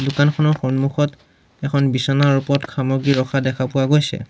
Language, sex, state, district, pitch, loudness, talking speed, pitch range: Assamese, male, Assam, Sonitpur, 135 Hz, -18 LUFS, 140 wpm, 130-145 Hz